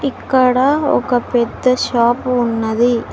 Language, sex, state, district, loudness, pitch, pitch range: Telugu, female, Telangana, Mahabubabad, -15 LUFS, 245 Hz, 235-260 Hz